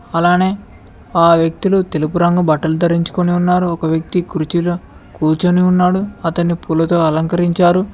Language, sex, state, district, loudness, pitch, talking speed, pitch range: Telugu, male, Telangana, Mahabubabad, -15 LUFS, 175 Hz, 120 wpm, 165-180 Hz